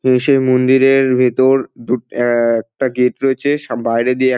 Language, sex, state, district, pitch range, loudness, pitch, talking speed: Bengali, male, West Bengal, Dakshin Dinajpur, 120-130 Hz, -14 LUFS, 130 Hz, 180 wpm